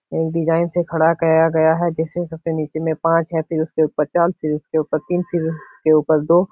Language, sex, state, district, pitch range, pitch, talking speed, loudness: Hindi, male, Uttar Pradesh, Etah, 155-170 Hz, 160 Hz, 240 wpm, -19 LUFS